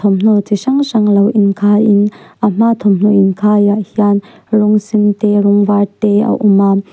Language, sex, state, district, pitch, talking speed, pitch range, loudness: Mizo, female, Mizoram, Aizawl, 205 Hz, 210 wpm, 205-210 Hz, -12 LUFS